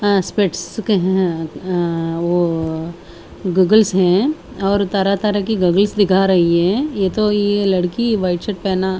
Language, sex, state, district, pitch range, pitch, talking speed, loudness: Hindi, female, Haryana, Charkhi Dadri, 180-205 Hz, 190 Hz, 155 wpm, -17 LUFS